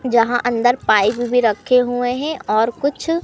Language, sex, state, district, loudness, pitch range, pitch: Hindi, male, Madhya Pradesh, Katni, -17 LUFS, 230-255 Hz, 245 Hz